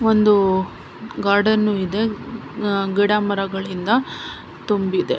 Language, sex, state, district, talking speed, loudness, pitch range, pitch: Kannada, female, Karnataka, Mysore, 80 wpm, -19 LUFS, 195-215 Hz, 205 Hz